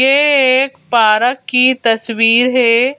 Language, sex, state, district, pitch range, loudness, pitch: Hindi, female, Madhya Pradesh, Bhopal, 230-265 Hz, -12 LUFS, 250 Hz